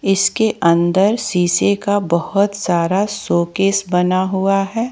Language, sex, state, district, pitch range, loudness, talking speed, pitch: Hindi, female, Jharkhand, Ranchi, 180-205 Hz, -16 LUFS, 120 wpm, 195 Hz